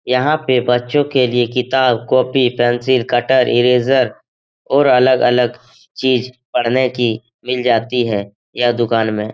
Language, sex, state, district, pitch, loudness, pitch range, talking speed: Hindi, male, Bihar, Jahanabad, 125 Hz, -15 LUFS, 120-130 Hz, 140 wpm